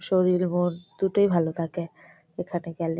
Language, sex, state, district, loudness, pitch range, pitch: Bengali, female, West Bengal, Jalpaiguri, -26 LUFS, 165-180 Hz, 175 Hz